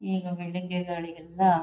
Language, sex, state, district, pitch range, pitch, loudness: Kannada, female, Karnataka, Shimoga, 170-180 Hz, 180 Hz, -30 LUFS